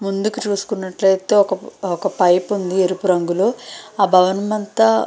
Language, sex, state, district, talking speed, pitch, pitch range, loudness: Telugu, female, Andhra Pradesh, Srikakulam, 130 wpm, 195 Hz, 185-210 Hz, -18 LUFS